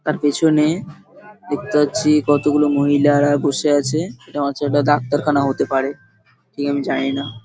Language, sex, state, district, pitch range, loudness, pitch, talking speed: Bengali, male, West Bengal, Paschim Medinipur, 140-150 Hz, -18 LUFS, 145 Hz, 160 wpm